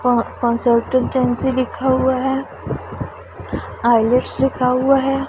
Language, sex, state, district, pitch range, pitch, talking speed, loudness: Hindi, female, Punjab, Pathankot, 245-265 Hz, 255 Hz, 125 wpm, -18 LUFS